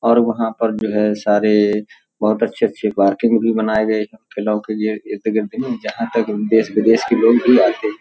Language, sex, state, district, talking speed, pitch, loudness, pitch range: Hindi, male, Uttar Pradesh, Hamirpur, 180 wpm, 110 Hz, -17 LUFS, 105-115 Hz